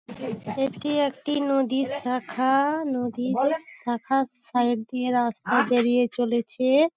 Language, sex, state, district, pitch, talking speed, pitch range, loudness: Bengali, female, West Bengal, Paschim Medinipur, 255 Hz, 95 wpm, 240-270 Hz, -25 LUFS